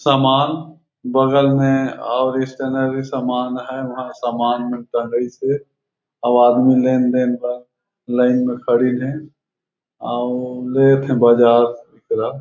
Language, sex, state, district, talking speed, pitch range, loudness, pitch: Chhattisgarhi, male, Chhattisgarh, Raigarh, 125 wpm, 125-135 Hz, -17 LUFS, 130 Hz